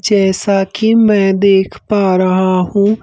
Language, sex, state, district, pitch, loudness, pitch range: Hindi, male, Madhya Pradesh, Bhopal, 195 Hz, -12 LUFS, 190-210 Hz